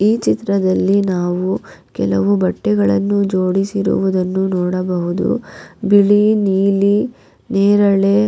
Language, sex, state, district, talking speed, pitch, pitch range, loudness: Kannada, female, Karnataka, Raichur, 70 wpm, 195 Hz, 180-200 Hz, -16 LUFS